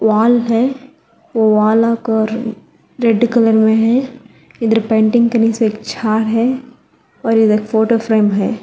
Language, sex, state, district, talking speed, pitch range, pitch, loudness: Hindi, female, Telangana, Hyderabad, 155 wpm, 220-235 Hz, 225 Hz, -14 LUFS